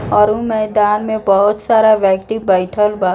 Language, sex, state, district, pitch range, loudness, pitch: Bhojpuri, female, Bihar, East Champaran, 195-220 Hz, -14 LUFS, 210 Hz